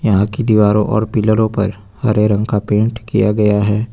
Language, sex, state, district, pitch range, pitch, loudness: Hindi, male, Uttar Pradesh, Lucknow, 105-110 Hz, 105 Hz, -15 LUFS